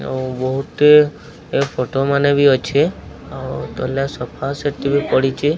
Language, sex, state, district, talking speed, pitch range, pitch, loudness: Odia, male, Odisha, Sambalpur, 140 wpm, 130-145 Hz, 140 Hz, -17 LUFS